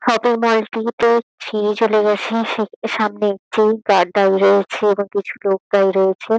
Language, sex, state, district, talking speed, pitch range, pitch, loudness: Bengali, female, West Bengal, Kolkata, 170 wpm, 200-225 Hz, 215 Hz, -17 LUFS